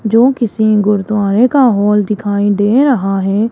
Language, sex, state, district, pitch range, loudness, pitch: Hindi, female, Rajasthan, Jaipur, 205-235 Hz, -12 LUFS, 210 Hz